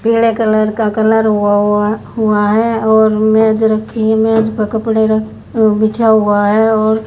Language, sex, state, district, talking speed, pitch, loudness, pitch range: Hindi, female, Haryana, Jhajjar, 170 wpm, 220 Hz, -12 LUFS, 215-220 Hz